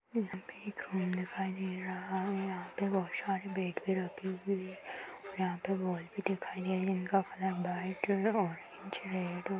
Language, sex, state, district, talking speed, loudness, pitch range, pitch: Hindi, female, Uttar Pradesh, Ghazipur, 205 wpm, -36 LUFS, 185-195 Hz, 190 Hz